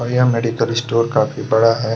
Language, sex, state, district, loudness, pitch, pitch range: Hindi, male, Chhattisgarh, Kabirdham, -17 LUFS, 115 Hz, 115-120 Hz